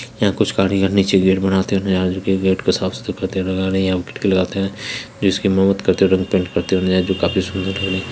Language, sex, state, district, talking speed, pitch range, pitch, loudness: Hindi, female, Bihar, Purnia, 280 wpm, 95-100 Hz, 95 Hz, -18 LUFS